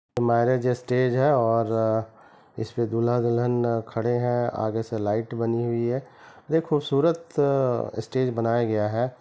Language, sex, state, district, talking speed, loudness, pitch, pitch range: Hindi, male, Chhattisgarh, Bilaspur, 135 wpm, -24 LUFS, 120 Hz, 115-125 Hz